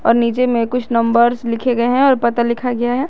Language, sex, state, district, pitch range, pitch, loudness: Hindi, female, Jharkhand, Garhwa, 235-250 Hz, 240 Hz, -16 LUFS